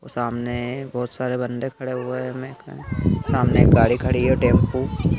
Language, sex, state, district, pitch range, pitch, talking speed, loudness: Hindi, male, Madhya Pradesh, Dhar, 120-130 Hz, 125 Hz, 140 wpm, -21 LUFS